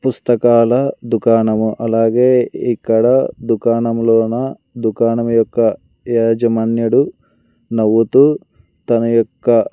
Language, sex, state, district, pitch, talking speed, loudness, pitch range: Telugu, male, Andhra Pradesh, Sri Satya Sai, 115 Hz, 70 wpm, -15 LUFS, 115-120 Hz